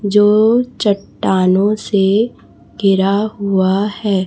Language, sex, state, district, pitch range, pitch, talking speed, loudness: Hindi, female, Chhattisgarh, Raipur, 195-210 Hz, 200 Hz, 85 wpm, -15 LUFS